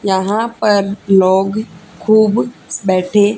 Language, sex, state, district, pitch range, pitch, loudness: Hindi, female, Haryana, Charkhi Dadri, 190-215 Hz, 205 Hz, -14 LUFS